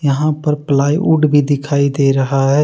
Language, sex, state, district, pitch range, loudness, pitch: Hindi, male, Jharkhand, Deoghar, 140-150 Hz, -14 LUFS, 145 Hz